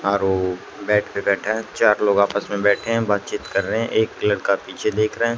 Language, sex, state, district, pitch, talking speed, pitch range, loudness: Hindi, male, Haryana, Charkhi Dadri, 105 Hz, 245 wpm, 100-110 Hz, -20 LUFS